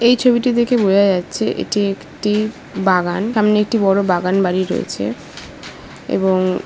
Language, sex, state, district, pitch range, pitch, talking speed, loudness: Bengali, female, West Bengal, Paschim Medinipur, 185-220 Hz, 200 Hz, 135 wpm, -17 LUFS